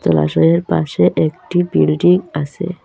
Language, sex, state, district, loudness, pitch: Bengali, female, Assam, Hailakandi, -15 LUFS, 145 Hz